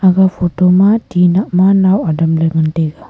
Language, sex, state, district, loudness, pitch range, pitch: Wancho, female, Arunachal Pradesh, Longding, -12 LUFS, 165-190 Hz, 180 Hz